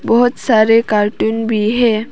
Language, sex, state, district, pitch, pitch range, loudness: Hindi, female, Arunachal Pradesh, Papum Pare, 225 Hz, 215-235 Hz, -14 LUFS